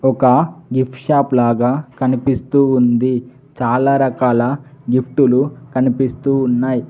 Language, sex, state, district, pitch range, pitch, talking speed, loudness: Telugu, male, Telangana, Mahabubabad, 125-135 Hz, 130 Hz, 95 wpm, -16 LUFS